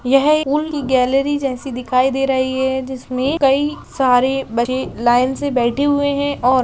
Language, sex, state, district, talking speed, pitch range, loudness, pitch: Hindi, female, Bihar, Purnia, 180 wpm, 255-280 Hz, -17 LUFS, 265 Hz